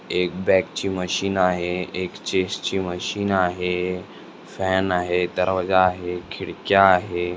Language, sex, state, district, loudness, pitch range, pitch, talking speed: Marathi, male, Maharashtra, Dhule, -22 LUFS, 90-95 Hz, 90 Hz, 130 wpm